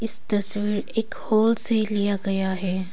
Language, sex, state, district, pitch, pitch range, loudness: Hindi, female, Arunachal Pradesh, Papum Pare, 210 Hz, 195-220 Hz, -18 LUFS